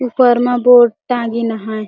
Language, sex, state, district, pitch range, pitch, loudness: Chhattisgarhi, female, Chhattisgarh, Jashpur, 230-245 Hz, 240 Hz, -13 LUFS